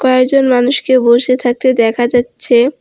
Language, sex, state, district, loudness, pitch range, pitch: Bengali, female, West Bengal, Alipurduar, -12 LUFS, 240-260 Hz, 250 Hz